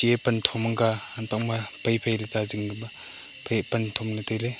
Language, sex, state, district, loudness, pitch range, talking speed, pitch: Wancho, male, Arunachal Pradesh, Longding, -26 LUFS, 110-115 Hz, 210 wpm, 115 Hz